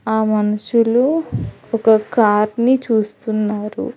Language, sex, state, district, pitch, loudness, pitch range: Telugu, female, Telangana, Hyderabad, 220 Hz, -17 LUFS, 210-235 Hz